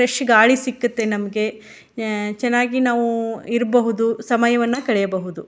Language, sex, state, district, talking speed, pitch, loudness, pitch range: Kannada, female, Karnataka, Shimoga, 110 wpm, 230 Hz, -19 LUFS, 215-245 Hz